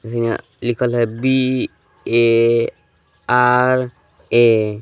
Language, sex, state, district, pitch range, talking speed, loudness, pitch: Hindi, male, Jharkhand, Palamu, 115-125 Hz, 100 wpm, -17 LUFS, 120 Hz